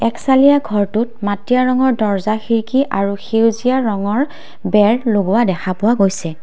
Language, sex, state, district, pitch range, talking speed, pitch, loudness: Assamese, female, Assam, Kamrup Metropolitan, 205-255 Hz, 140 wpm, 225 Hz, -16 LUFS